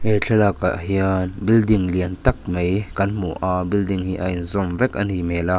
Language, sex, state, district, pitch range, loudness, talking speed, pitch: Mizo, male, Mizoram, Aizawl, 90-100 Hz, -20 LUFS, 205 wpm, 95 Hz